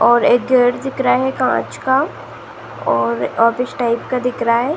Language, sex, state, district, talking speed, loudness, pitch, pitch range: Hindi, female, Uttar Pradesh, Jalaun, 190 wpm, -17 LUFS, 245 Hz, 235-260 Hz